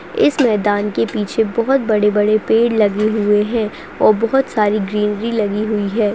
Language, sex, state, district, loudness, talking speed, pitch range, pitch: Hindi, female, Bihar, Jamui, -16 LUFS, 175 wpm, 210-225 Hz, 215 Hz